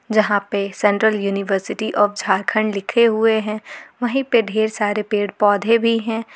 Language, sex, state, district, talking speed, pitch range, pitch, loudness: Hindi, female, Jharkhand, Garhwa, 160 wpm, 205-225 Hz, 215 Hz, -18 LUFS